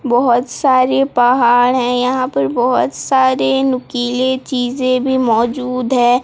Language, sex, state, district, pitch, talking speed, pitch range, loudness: Hindi, female, Odisha, Sambalpur, 255 Hz, 125 wpm, 245-260 Hz, -14 LUFS